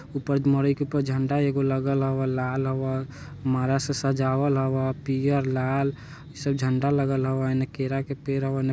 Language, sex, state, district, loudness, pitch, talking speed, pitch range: Bajjika, male, Bihar, Vaishali, -25 LUFS, 135 Hz, 180 wpm, 130-140 Hz